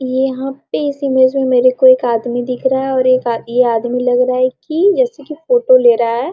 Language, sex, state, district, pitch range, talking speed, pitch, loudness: Hindi, female, Bihar, Araria, 250-285 Hz, 265 wpm, 260 Hz, -14 LUFS